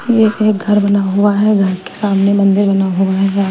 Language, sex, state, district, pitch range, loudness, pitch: Hindi, female, Bihar, Patna, 195-205 Hz, -13 LUFS, 200 Hz